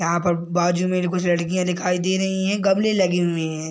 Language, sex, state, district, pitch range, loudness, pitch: Hindi, male, Bihar, Madhepura, 175-185 Hz, -21 LUFS, 180 Hz